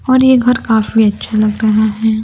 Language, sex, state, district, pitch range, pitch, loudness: Hindi, female, Bihar, Kaimur, 215-250 Hz, 220 Hz, -12 LUFS